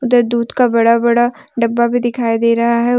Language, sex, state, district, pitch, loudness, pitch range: Hindi, female, Jharkhand, Deoghar, 235 Hz, -14 LUFS, 235-245 Hz